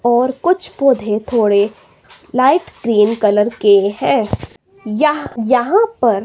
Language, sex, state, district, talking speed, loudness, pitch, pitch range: Hindi, female, Himachal Pradesh, Shimla, 105 wpm, -15 LUFS, 235 Hz, 210-275 Hz